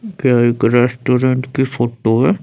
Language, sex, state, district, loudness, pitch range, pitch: Hindi, male, Chandigarh, Chandigarh, -15 LUFS, 120-135 Hz, 125 Hz